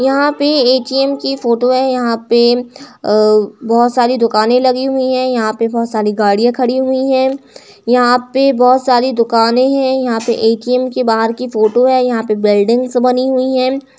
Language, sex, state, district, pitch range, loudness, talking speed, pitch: Hindi, female, Uttar Pradesh, Etah, 230-260 Hz, -13 LUFS, 185 wpm, 250 Hz